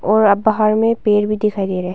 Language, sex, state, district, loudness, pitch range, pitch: Hindi, female, Arunachal Pradesh, Longding, -16 LUFS, 200-215 Hz, 210 Hz